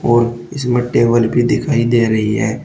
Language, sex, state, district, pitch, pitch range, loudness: Hindi, male, Uttar Pradesh, Shamli, 120 Hz, 115-120 Hz, -15 LUFS